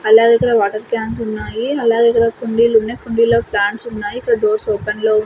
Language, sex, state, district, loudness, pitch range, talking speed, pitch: Telugu, female, Andhra Pradesh, Sri Satya Sai, -16 LUFS, 215-235 Hz, 180 wpm, 230 Hz